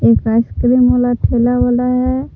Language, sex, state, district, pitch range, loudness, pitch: Hindi, female, Jharkhand, Palamu, 240-250 Hz, -14 LUFS, 245 Hz